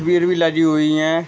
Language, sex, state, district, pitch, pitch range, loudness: Hindi, male, Jharkhand, Sahebganj, 165 Hz, 155-170 Hz, -16 LUFS